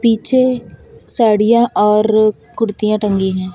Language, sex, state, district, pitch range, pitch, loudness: Hindi, female, Uttar Pradesh, Lucknow, 205-230 Hz, 215 Hz, -14 LUFS